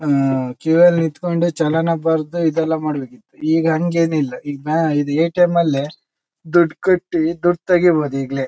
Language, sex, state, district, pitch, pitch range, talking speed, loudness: Kannada, male, Karnataka, Shimoga, 160 Hz, 145-170 Hz, 150 wpm, -17 LUFS